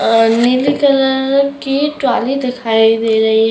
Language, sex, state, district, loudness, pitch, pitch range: Hindi, female, Uttarakhand, Uttarkashi, -13 LUFS, 255 Hz, 225-275 Hz